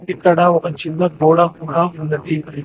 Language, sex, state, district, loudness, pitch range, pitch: Telugu, male, Telangana, Hyderabad, -16 LUFS, 155-175 Hz, 165 Hz